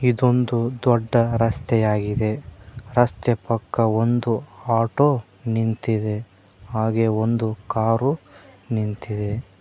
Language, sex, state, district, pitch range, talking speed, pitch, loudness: Kannada, male, Karnataka, Koppal, 105-120 Hz, 75 wpm, 115 Hz, -22 LUFS